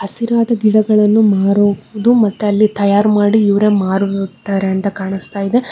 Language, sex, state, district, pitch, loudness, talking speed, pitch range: Kannada, female, Karnataka, Bangalore, 205 Hz, -14 LUFS, 125 wpm, 195-215 Hz